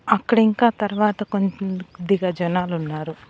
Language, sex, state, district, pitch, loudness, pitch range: Telugu, female, Andhra Pradesh, Annamaya, 195 Hz, -21 LUFS, 175-210 Hz